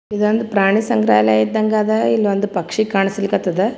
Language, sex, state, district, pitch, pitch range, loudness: Kannada, female, Karnataka, Gulbarga, 200 Hz, 180-215 Hz, -16 LUFS